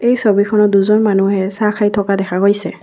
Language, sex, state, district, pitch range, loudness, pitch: Assamese, female, Assam, Kamrup Metropolitan, 195-210 Hz, -14 LUFS, 205 Hz